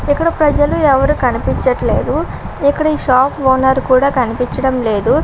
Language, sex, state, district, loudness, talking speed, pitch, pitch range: Telugu, female, Andhra Pradesh, Srikakulam, -14 LUFS, 125 wpm, 265 Hz, 255-290 Hz